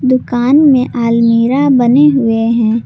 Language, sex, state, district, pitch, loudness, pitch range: Hindi, female, Jharkhand, Garhwa, 245 Hz, -10 LUFS, 230-270 Hz